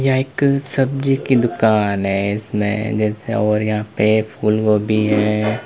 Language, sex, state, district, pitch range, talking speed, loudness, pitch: Hindi, male, Uttar Pradesh, Lalitpur, 105-130 Hz, 140 wpm, -17 LUFS, 110 Hz